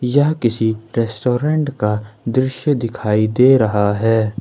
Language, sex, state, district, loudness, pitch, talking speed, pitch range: Hindi, male, Jharkhand, Ranchi, -17 LUFS, 115 Hz, 120 wpm, 110-130 Hz